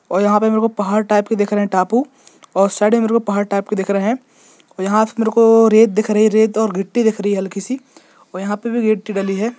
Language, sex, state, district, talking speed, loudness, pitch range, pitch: Hindi, male, Jharkhand, Jamtara, 295 wpm, -16 LUFS, 200-225 Hz, 215 Hz